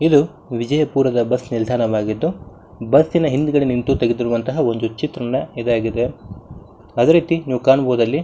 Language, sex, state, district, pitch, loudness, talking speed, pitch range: Kannada, male, Karnataka, Bijapur, 125 Hz, -18 LUFS, 130 wpm, 120-145 Hz